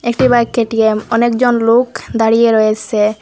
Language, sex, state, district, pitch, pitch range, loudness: Bengali, female, Assam, Hailakandi, 230 Hz, 220-240 Hz, -13 LUFS